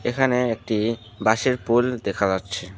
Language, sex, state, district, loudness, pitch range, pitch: Bengali, male, West Bengal, Alipurduar, -22 LUFS, 100-125 Hz, 115 Hz